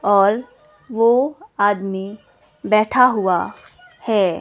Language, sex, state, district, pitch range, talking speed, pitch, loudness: Hindi, female, Himachal Pradesh, Shimla, 200-250 Hz, 80 wpm, 215 Hz, -18 LUFS